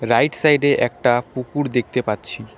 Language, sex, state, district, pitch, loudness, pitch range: Bengali, male, West Bengal, Alipurduar, 125 Hz, -19 LUFS, 120-145 Hz